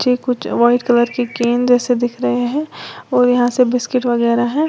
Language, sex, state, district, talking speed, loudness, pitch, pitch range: Hindi, female, Uttar Pradesh, Lalitpur, 205 wpm, -16 LUFS, 245 Hz, 240-250 Hz